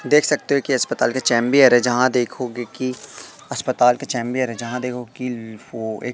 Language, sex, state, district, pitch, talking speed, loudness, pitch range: Hindi, male, Madhya Pradesh, Katni, 125 Hz, 195 wpm, -20 LUFS, 120-130 Hz